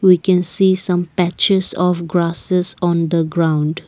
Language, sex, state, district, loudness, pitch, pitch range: English, female, Assam, Kamrup Metropolitan, -16 LUFS, 180 Hz, 170-185 Hz